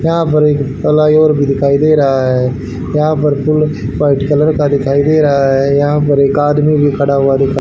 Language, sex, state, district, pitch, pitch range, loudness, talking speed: Hindi, male, Haryana, Rohtak, 145 Hz, 140-150 Hz, -12 LUFS, 220 wpm